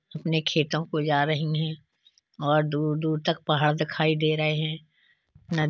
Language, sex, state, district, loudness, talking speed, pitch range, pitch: Hindi, male, Uttar Pradesh, Hamirpur, -26 LUFS, 170 wpm, 150-155 Hz, 155 Hz